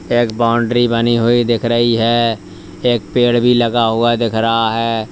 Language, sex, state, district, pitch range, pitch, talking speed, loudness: Hindi, male, Uttar Pradesh, Lalitpur, 115-120 Hz, 120 Hz, 175 wpm, -14 LUFS